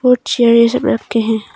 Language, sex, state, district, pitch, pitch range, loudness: Hindi, female, Arunachal Pradesh, Papum Pare, 235 Hz, 225-245 Hz, -13 LUFS